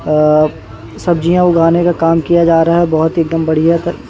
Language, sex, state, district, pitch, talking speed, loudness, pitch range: Hindi, male, Madhya Pradesh, Bhopal, 165 Hz, 190 wpm, -12 LUFS, 155-170 Hz